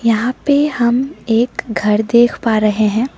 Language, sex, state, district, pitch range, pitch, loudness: Hindi, female, Sikkim, Gangtok, 220-250 Hz, 235 Hz, -15 LUFS